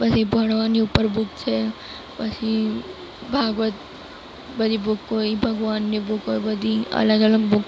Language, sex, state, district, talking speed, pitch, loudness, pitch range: Gujarati, female, Maharashtra, Mumbai Suburban, 135 wpm, 220 Hz, -22 LUFS, 215-220 Hz